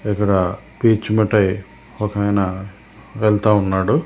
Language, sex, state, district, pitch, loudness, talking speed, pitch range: Telugu, male, Telangana, Hyderabad, 105 Hz, -18 LUFS, 105 wpm, 95-110 Hz